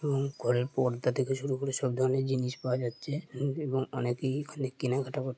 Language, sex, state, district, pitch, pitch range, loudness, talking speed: Bengali, male, West Bengal, Purulia, 130 Hz, 125-140 Hz, -32 LUFS, 155 wpm